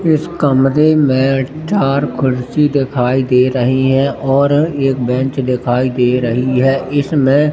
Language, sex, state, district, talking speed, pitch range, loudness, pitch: Hindi, male, Madhya Pradesh, Katni, 135 wpm, 130-145 Hz, -14 LUFS, 135 Hz